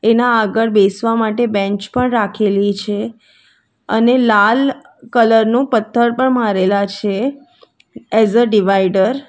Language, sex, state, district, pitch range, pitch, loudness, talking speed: Gujarati, female, Gujarat, Valsad, 205-240 Hz, 225 Hz, -14 LUFS, 130 wpm